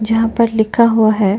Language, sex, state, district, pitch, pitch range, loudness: Hindi, female, Chhattisgarh, Bastar, 225 Hz, 215-230 Hz, -13 LUFS